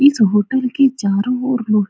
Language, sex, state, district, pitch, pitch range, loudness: Hindi, female, Bihar, Supaul, 250 Hz, 210-260 Hz, -16 LUFS